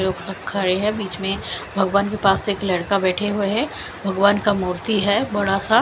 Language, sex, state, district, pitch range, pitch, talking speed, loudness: Hindi, female, Chandigarh, Chandigarh, 190-205 Hz, 200 Hz, 185 wpm, -21 LUFS